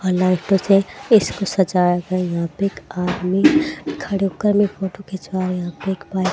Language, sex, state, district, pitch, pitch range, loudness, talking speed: Hindi, female, Haryana, Charkhi Dadri, 190 Hz, 180-195 Hz, -19 LUFS, 180 wpm